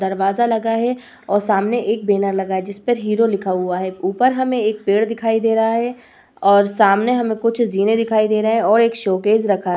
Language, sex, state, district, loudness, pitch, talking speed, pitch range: Hindi, female, Uttar Pradesh, Budaun, -17 LUFS, 215 Hz, 220 wpm, 200-230 Hz